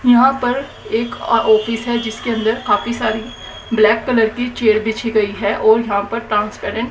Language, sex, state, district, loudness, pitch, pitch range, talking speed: Hindi, female, Haryana, Jhajjar, -17 LUFS, 225 Hz, 215-240 Hz, 185 wpm